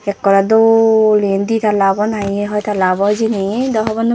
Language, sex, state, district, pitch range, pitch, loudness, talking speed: Chakma, female, Tripura, West Tripura, 200-220 Hz, 210 Hz, -14 LUFS, 190 wpm